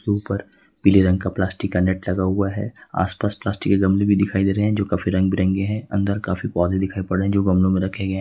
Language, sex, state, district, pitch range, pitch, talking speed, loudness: Hindi, male, Jharkhand, Ranchi, 95-100 Hz, 95 Hz, 265 wpm, -21 LUFS